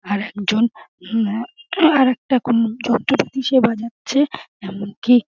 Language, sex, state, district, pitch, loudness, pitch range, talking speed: Bengali, female, West Bengal, Dakshin Dinajpur, 230 Hz, -19 LUFS, 215-260 Hz, 115 wpm